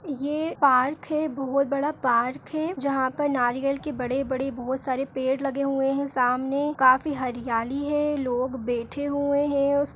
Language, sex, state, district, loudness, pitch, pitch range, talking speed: Kumaoni, female, Uttarakhand, Uttarkashi, -25 LUFS, 275 Hz, 260-285 Hz, 170 wpm